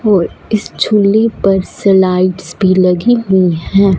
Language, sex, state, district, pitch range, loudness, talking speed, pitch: Hindi, female, Punjab, Fazilka, 185-210 Hz, -12 LUFS, 135 wpm, 190 Hz